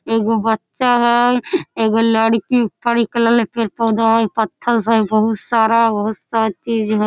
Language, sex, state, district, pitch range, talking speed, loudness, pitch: Maithili, female, Bihar, Samastipur, 220-235 Hz, 150 wpm, -16 LUFS, 225 Hz